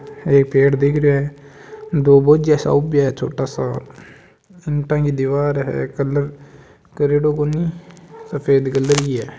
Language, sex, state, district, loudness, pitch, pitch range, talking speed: Marwari, male, Rajasthan, Nagaur, -17 LUFS, 145 Hz, 140-150 Hz, 145 wpm